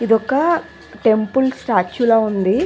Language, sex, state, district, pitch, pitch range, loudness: Telugu, female, Andhra Pradesh, Visakhapatnam, 225 Hz, 215-265 Hz, -17 LUFS